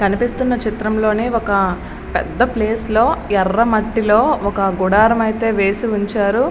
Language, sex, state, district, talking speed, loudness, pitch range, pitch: Telugu, female, Andhra Pradesh, Srikakulam, 110 wpm, -16 LUFS, 200-230 Hz, 215 Hz